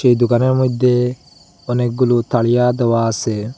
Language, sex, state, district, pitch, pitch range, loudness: Bengali, male, Assam, Hailakandi, 125 Hz, 120-125 Hz, -16 LUFS